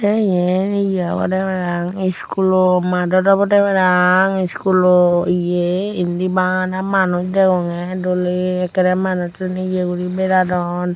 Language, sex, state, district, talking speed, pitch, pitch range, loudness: Chakma, female, Tripura, Unakoti, 115 wpm, 185 Hz, 180-190 Hz, -17 LUFS